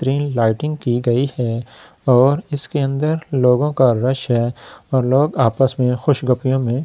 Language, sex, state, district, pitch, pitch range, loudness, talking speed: Hindi, male, Delhi, New Delhi, 130 Hz, 120-140 Hz, -18 LUFS, 165 wpm